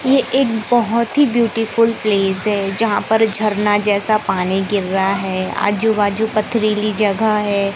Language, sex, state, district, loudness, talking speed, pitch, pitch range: Hindi, male, Madhya Pradesh, Katni, -16 LUFS, 155 wpm, 215 Hz, 200-225 Hz